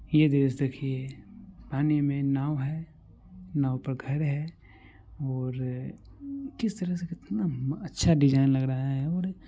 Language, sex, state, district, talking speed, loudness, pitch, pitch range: Maithili, male, Bihar, Supaul, 145 wpm, -28 LUFS, 140 Hz, 135-170 Hz